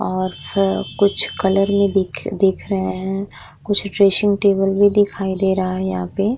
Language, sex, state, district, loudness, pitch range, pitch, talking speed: Hindi, female, Bihar, Vaishali, -18 LUFS, 190-200 Hz, 195 Hz, 180 wpm